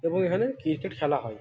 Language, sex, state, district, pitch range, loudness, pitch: Bengali, male, West Bengal, Malda, 145-185 Hz, -28 LUFS, 165 Hz